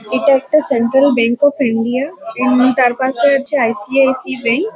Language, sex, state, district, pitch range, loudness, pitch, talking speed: Bengali, female, West Bengal, Kolkata, 245-280 Hz, -14 LUFS, 260 Hz, 175 wpm